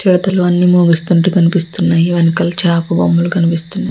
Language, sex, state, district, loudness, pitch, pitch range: Telugu, female, Andhra Pradesh, Guntur, -12 LUFS, 175 Hz, 170-180 Hz